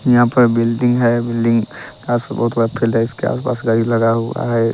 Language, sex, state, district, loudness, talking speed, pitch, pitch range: Hindi, male, Bihar, West Champaran, -16 LUFS, 115 wpm, 115 Hz, 115-120 Hz